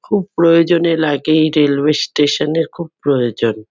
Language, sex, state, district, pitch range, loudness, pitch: Bengali, female, West Bengal, Kolkata, 140-165 Hz, -15 LUFS, 155 Hz